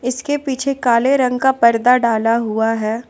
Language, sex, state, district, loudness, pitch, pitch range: Hindi, female, Jharkhand, Ranchi, -16 LUFS, 245 Hz, 230-265 Hz